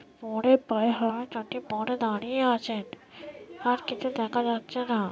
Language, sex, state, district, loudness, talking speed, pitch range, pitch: Bengali, female, West Bengal, North 24 Parganas, -28 LUFS, 130 wpm, 225-250 Hz, 235 Hz